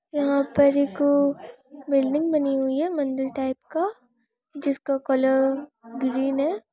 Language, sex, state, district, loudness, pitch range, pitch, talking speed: Bhojpuri, female, Uttar Pradesh, Gorakhpur, -24 LUFS, 265-290 Hz, 280 Hz, 125 wpm